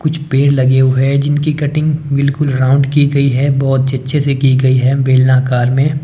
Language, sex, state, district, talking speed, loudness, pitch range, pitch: Hindi, male, Himachal Pradesh, Shimla, 210 wpm, -12 LUFS, 130-145 Hz, 140 Hz